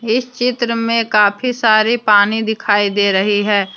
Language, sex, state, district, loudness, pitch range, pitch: Hindi, female, Jharkhand, Deoghar, -14 LUFS, 205-235 Hz, 215 Hz